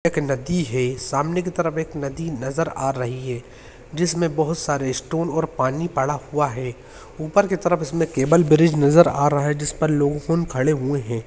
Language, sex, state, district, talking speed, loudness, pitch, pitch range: Hindi, male, Uttarakhand, Uttarkashi, 190 wpm, -21 LUFS, 150 Hz, 135-165 Hz